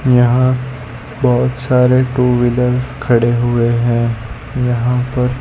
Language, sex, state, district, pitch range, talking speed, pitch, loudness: Hindi, male, Gujarat, Gandhinagar, 120-125 Hz, 110 wpm, 125 Hz, -14 LUFS